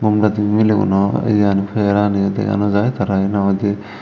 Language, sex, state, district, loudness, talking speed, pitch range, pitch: Chakma, male, Tripura, Dhalai, -16 LUFS, 150 wpm, 100-105 Hz, 100 Hz